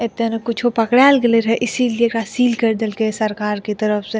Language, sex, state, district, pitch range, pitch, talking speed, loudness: Maithili, female, Bihar, Madhepura, 215-235 Hz, 230 Hz, 230 wpm, -17 LUFS